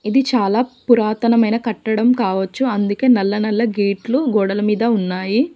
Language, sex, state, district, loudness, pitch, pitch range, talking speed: Telugu, female, Telangana, Mahabubabad, -17 LUFS, 220 Hz, 205-245 Hz, 130 wpm